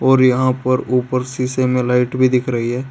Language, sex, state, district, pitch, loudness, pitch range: Hindi, male, Uttar Pradesh, Saharanpur, 125 Hz, -17 LUFS, 125-130 Hz